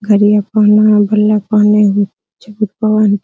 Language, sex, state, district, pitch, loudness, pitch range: Hindi, female, Bihar, Araria, 210 Hz, -11 LUFS, 205-215 Hz